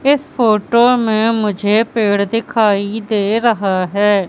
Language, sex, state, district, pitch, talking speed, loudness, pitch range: Hindi, female, Madhya Pradesh, Katni, 215 Hz, 125 wpm, -15 LUFS, 205-230 Hz